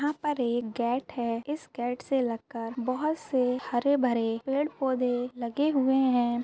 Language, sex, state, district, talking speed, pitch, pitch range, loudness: Hindi, female, Maharashtra, Aurangabad, 165 wpm, 250 Hz, 240-280 Hz, -29 LUFS